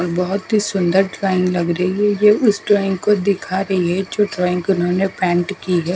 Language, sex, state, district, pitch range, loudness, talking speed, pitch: Hindi, female, Haryana, Charkhi Dadri, 180-200 Hz, -17 LUFS, 210 wpm, 190 Hz